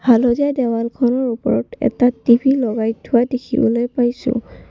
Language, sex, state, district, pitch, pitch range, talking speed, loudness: Assamese, female, Assam, Kamrup Metropolitan, 245 Hz, 235-255 Hz, 115 wpm, -17 LUFS